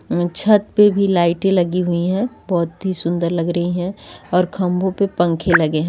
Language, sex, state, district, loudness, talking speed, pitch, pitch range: Hindi, female, Jharkhand, Sahebganj, -18 LUFS, 195 wpm, 180 Hz, 170-190 Hz